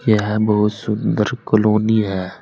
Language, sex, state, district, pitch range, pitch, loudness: Hindi, male, Uttar Pradesh, Saharanpur, 105-110 Hz, 105 Hz, -18 LUFS